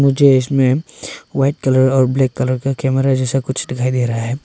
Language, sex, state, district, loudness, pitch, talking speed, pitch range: Hindi, male, Arunachal Pradesh, Longding, -16 LUFS, 130 Hz, 200 wpm, 130-135 Hz